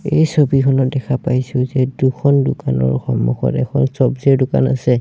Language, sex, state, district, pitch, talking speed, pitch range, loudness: Assamese, male, Assam, Sonitpur, 130 Hz, 145 wpm, 125-135 Hz, -16 LUFS